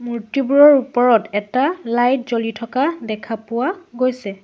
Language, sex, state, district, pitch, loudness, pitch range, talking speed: Assamese, female, Assam, Sonitpur, 240 Hz, -18 LUFS, 225-270 Hz, 120 wpm